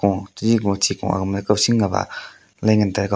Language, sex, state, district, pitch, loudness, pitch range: Wancho, male, Arunachal Pradesh, Longding, 100 Hz, -20 LUFS, 95-105 Hz